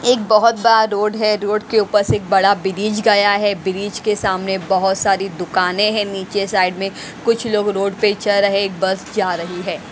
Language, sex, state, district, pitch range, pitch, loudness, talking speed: Hindi, female, Haryana, Rohtak, 190-215 Hz, 205 Hz, -17 LUFS, 210 wpm